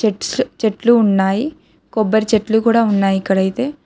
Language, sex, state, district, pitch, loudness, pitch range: Telugu, female, Telangana, Hyderabad, 220 Hz, -16 LUFS, 195-235 Hz